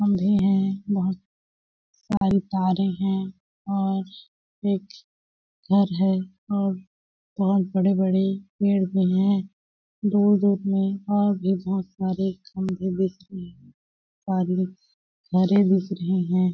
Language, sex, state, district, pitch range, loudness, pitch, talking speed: Hindi, female, Chhattisgarh, Balrampur, 185-195 Hz, -24 LUFS, 190 Hz, 100 wpm